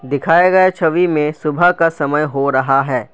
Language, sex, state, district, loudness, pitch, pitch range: Hindi, male, Assam, Kamrup Metropolitan, -14 LUFS, 150 Hz, 140-175 Hz